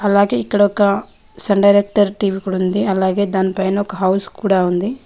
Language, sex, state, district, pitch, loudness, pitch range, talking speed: Telugu, female, Telangana, Mahabubabad, 200 Hz, -16 LUFS, 190-205 Hz, 165 wpm